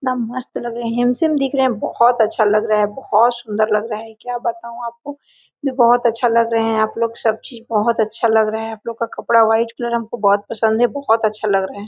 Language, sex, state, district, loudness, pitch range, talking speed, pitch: Hindi, female, Jharkhand, Sahebganj, -18 LUFS, 220-240 Hz, 245 wpm, 230 Hz